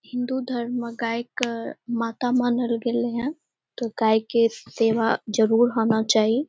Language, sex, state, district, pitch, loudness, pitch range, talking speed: Maithili, female, Bihar, Saharsa, 235 Hz, -24 LUFS, 225-245 Hz, 150 wpm